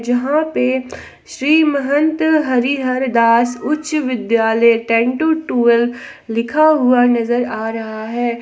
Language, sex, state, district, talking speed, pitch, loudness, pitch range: Hindi, female, Jharkhand, Palamu, 115 wpm, 245 Hz, -15 LUFS, 235-290 Hz